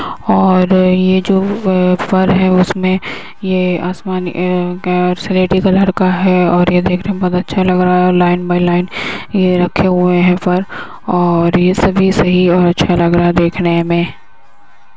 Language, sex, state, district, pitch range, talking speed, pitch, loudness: Hindi, female, Uttar Pradesh, Etah, 175-185 Hz, 180 wpm, 180 Hz, -13 LUFS